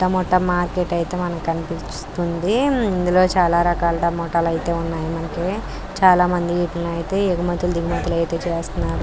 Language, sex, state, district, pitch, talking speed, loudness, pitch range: Telugu, female, Andhra Pradesh, Anantapur, 175 Hz, 125 wpm, -20 LUFS, 170-180 Hz